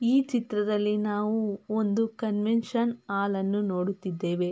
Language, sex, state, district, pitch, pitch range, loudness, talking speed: Kannada, female, Karnataka, Mysore, 210 Hz, 200-225 Hz, -28 LUFS, 105 wpm